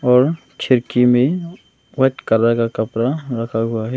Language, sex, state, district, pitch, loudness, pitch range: Hindi, male, Arunachal Pradesh, Longding, 125 Hz, -18 LUFS, 115-130 Hz